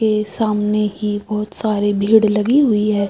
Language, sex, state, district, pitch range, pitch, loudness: Hindi, female, Chhattisgarh, Balrampur, 210-215 Hz, 210 Hz, -17 LUFS